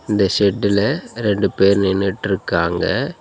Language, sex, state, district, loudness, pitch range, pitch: Tamil, male, Tamil Nadu, Nilgiris, -18 LUFS, 95-105 Hz, 100 Hz